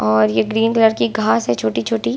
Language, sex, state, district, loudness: Hindi, female, Bihar, Saran, -16 LUFS